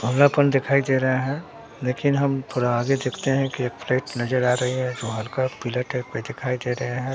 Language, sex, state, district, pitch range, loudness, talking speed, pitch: Hindi, male, Bihar, Katihar, 125-135 Hz, -23 LUFS, 200 wpm, 130 Hz